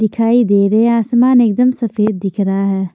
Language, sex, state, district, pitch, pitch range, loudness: Hindi, female, Maharashtra, Washim, 220 Hz, 200-235 Hz, -13 LUFS